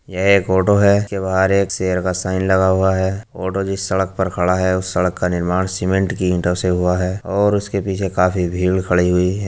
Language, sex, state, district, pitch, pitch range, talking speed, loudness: Hindi, male, Uttar Pradesh, Jyotiba Phule Nagar, 95 Hz, 90-95 Hz, 240 wpm, -17 LUFS